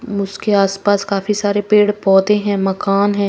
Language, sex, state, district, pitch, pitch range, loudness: Hindi, female, Himachal Pradesh, Shimla, 205 Hz, 195-210 Hz, -15 LUFS